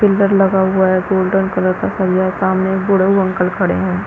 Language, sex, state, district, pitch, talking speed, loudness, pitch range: Hindi, female, Chhattisgarh, Balrampur, 190 Hz, 220 wpm, -15 LUFS, 185-195 Hz